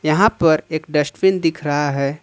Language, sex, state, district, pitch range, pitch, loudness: Hindi, male, Jharkhand, Ranchi, 145-165 Hz, 155 Hz, -18 LUFS